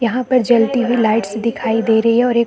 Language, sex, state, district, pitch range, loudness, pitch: Hindi, female, Chhattisgarh, Korba, 225-245 Hz, -15 LUFS, 235 Hz